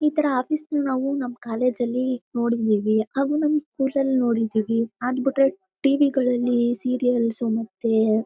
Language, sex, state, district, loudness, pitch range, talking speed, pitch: Kannada, female, Karnataka, Mysore, -23 LUFS, 230-275 Hz, 140 wpm, 250 Hz